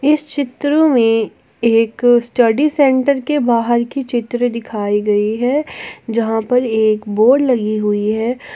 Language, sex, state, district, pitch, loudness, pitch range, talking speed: Hindi, female, Jharkhand, Garhwa, 240 Hz, -15 LUFS, 225-265 Hz, 140 wpm